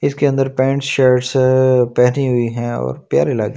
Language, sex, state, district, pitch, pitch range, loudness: Hindi, male, Delhi, New Delhi, 130 Hz, 125-135 Hz, -15 LUFS